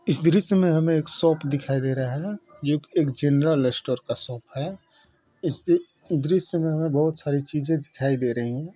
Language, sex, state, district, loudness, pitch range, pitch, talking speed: Hindi, male, Bihar, Muzaffarpur, -23 LUFS, 135-170 Hz, 150 Hz, 200 wpm